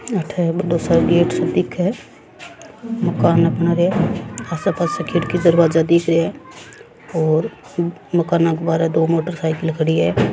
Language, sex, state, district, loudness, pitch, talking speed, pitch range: Rajasthani, female, Rajasthan, Churu, -18 LUFS, 170 Hz, 135 wpm, 165-175 Hz